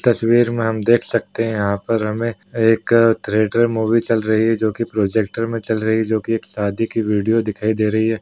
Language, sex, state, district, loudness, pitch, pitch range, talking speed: Hindi, male, Uttar Pradesh, Muzaffarnagar, -18 LUFS, 115 Hz, 110-115 Hz, 235 wpm